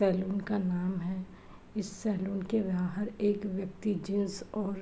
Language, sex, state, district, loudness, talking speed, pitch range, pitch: Hindi, female, Uttar Pradesh, Varanasi, -33 LUFS, 160 wpm, 190-205 Hz, 195 Hz